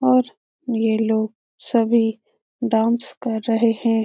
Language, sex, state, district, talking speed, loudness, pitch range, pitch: Hindi, female, Bihar, Lakhisarai, 120 wpm, -21 LUFS, 225-240 Hz, 230 Hz